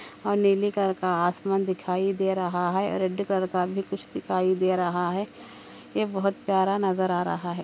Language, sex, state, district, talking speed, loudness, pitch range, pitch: Hindi, female, Andhra Pradesh, Anantapur, 150 wpm, -26 LUFS, 180-195 Hz, 190 Hz